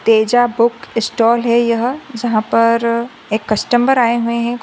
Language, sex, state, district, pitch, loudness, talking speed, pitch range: Hindi, female, Maharashtra, Aurangabad, 235 Hz, -15 LUFS, 155 wpm, 230-240 Hz